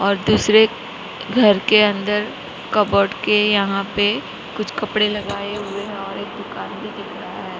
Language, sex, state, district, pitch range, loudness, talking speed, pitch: Hindi, female, Maharashtra, Mumbai Suburban, 200-215 Hz, -18 LUFS, 165 wpm, 210 Hz